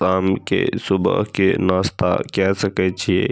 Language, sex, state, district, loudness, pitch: Maithili, male, Bihar, Saharsa, -19 LUFS, 95 Hz